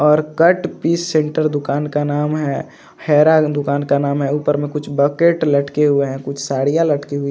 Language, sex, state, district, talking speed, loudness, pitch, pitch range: Hindi, male, Andhra Pradesh, Chittoor, 195 wpm, -17 LUFS, 150 Hz, 140-155 Hz